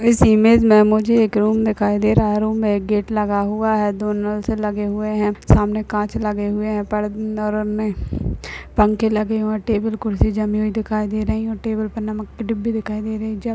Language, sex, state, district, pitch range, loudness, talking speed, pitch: Hindi, female, Rajasthan, Churu, 210-220 Hz, -19 LUFS, 210 wpm, 215 Hz